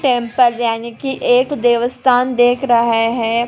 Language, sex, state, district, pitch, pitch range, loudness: Hindi, female, Chhattisgarh, Raigarh, 245 Hz, 235-250 Hz, -15 LUFS